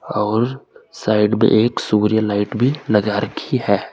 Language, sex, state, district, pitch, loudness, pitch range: Hindi, male, Uttar Pradesh, Saharanpur, 110 Hz, -18 LUFS, 105-115 Hz